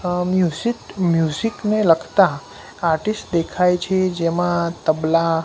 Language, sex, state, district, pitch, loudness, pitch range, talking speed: Gujarati, male, Gujarat, Gandhinagar, 175 Hz, -19 LUFS, 165-185 Hz, 110 wpm